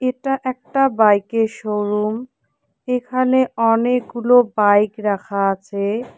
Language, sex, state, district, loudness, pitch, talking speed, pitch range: Bengali, female, West Bengal, Cooch Behar, -18 LUFS, 225 Hz, 95 wpm, 205-250 Hz